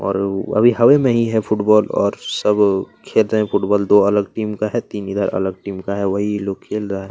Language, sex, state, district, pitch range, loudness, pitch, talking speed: Hindi, male, Chhattisgarh, Kabirdham, 100-110 Hz, -17 LUFS, 105 Hz, 255 wpm